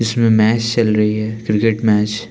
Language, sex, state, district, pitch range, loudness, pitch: Hindi, male, Uttarakhand, Tehri Garhwal, 105-115 Hz, -15 LUFS, 110 Hz